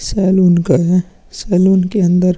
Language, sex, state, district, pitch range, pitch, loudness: Hindi, male, Uttar Pradesh, Muzaffarnagar, 180-190 Hz, 180 Hz, -13 LUFS